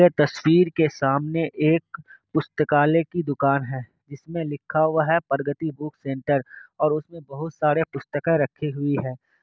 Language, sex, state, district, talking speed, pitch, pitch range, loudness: Hindi, male, Bihar, Kishanganj, 160 wpm, 150 Hz, 140-160 Hz, -23 LUFS